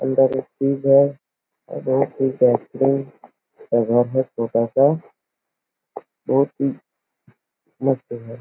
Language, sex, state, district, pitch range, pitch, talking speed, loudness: Hindi, male, Bihar, Jahanabad, 120-135 Hz, 130 Hz, 120 wpm, -20 LUFS